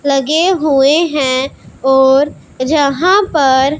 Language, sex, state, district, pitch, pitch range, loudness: Hindi, female, Punjab, Pathankot, 280 Hz, 270-310 Hz, -12 LUFS